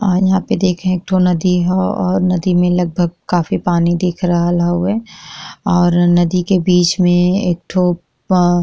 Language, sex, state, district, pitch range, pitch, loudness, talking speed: Bhojpuri, female, Uttar Pradesh, Gorakhpur, 175-185 Hz, 180 Hz, -15 LUFS, 165 wpm